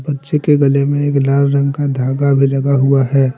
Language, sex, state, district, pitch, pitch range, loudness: Hindi, male, Jharkhand, Deoghar, 140 Hz, 135-140 Hz, -14 LUFS